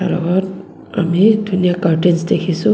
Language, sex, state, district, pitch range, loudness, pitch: Assamese, female, Assam, Kamrup Metropolitan, 170-190 Hz, -15 LUFS, 180 Hz